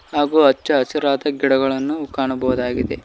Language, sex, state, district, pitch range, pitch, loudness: Kannada, male, Karnataka, Koppal, 130-145 Hz, 135 Hz, -18 LUFS